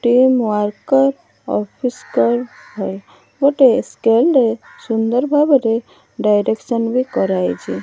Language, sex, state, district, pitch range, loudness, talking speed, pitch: Odia, female, Odisha, Malkangiri, 210-260 Hz, -16 LUFS, 85 wpm, 235 Hz